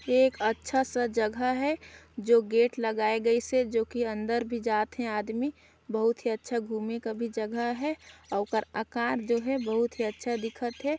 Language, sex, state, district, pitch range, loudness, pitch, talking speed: Chhattisgarhi, female, Chhattisgarh, Sarguja, 225-245 Hz, -29 LUFS, 235 Hz, 195 wpm